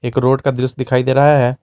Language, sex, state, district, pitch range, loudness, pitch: Hindi, male, Jharkhand, Garhwa, 125-135 Hz, -14 LUFS, 130 Hz